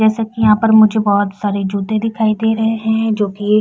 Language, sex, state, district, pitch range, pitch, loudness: Urdu, female, Uttar Pradesh, Budaun, 205-220 Hz, 215 Hz, -15 LUFS